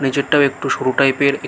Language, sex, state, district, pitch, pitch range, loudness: Bengali, male, West Bengal, Malda, 140 Hz, 135-140 Hz, -16 LUFS